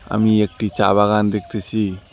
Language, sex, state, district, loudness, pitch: Bengali, male, West Bengal, Alipurduar, -18 LUFS, 105 Hz